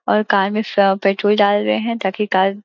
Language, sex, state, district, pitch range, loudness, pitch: Hindi, female, Uttar Pradesh, Gorakhpur, 195-210 Hz, -17 LUFS, 200 Hz